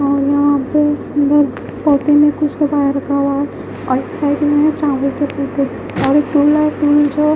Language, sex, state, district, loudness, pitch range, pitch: Hindi, female, Haryana, Charkhi Dadri, -15 LUFS, 280-295 Hz, 290 Hz